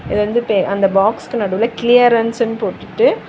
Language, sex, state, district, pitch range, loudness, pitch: Tamil, female, Tamil Nadu, Chennai, 200-240 Hz, -15 LUFS, 230 Hz